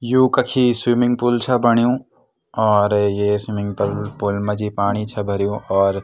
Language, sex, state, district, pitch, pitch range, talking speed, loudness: Garhwali, male, Uttarakhand, Tehri Garhwal, 105 Hz, 100-120 Hz, 180 wpm, -18 LUFS